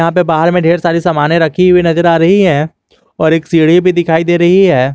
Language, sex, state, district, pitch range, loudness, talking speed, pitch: Hindi, male, Jharkhand, Garhwa, 160-175 Hz, -10 LUFS, 255 wpm, 170 Hz